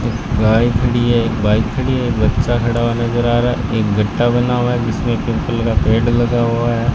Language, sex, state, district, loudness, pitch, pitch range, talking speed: Hindi, male, Rajasthan, Bikaner, -16 LUFS, 120 Hz, 115-120 Hz, 240 wpm